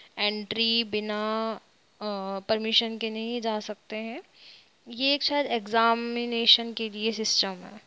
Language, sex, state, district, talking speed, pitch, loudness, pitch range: Hindi, female, Jharkhand, Jamtara, 120 wpm, 225 Hz, -26 LUFS, 210-230 Hz